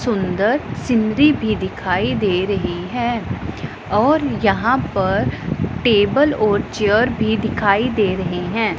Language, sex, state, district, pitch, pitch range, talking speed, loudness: Hindi, female, Punjab, Pathankot, 215 Hz, 200-240 Hz, 125 wpm, -18 LUFS